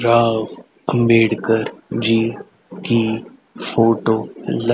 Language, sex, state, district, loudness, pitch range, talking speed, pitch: Hindi, male, Haryana, Rohtak, -18 LUFS, 110-115 Hz, 75 wpm, 115 Hz